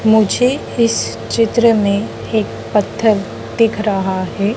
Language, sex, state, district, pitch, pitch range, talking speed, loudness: Hindi, female, Madhya Pradesh, Dhar, 220 Hz, 205-230 Hz, 120 wpm, -16 LUFS